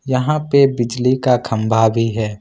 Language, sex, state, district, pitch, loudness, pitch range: Hindi, male, Jharkhand, Ranchi, 125 Hz, -16 LUFS, 115-130 Hz